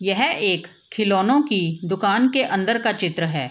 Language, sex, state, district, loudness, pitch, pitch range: Hindi, female, Bihar, Gopalganj, -20 LUFS, 195 Hz, 175-225 Hz